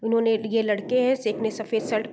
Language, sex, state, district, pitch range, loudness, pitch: Hindi, female, Bihar, Gopalganj, 220-230 Hz, -24 LUFS, 225 Hz